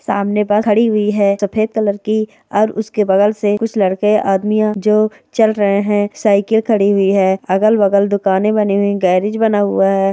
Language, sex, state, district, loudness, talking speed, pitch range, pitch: Hindi, female, Bihar, Jamui, -14 LUFS, 185 wpm, 200-215 Hz, 205 Hz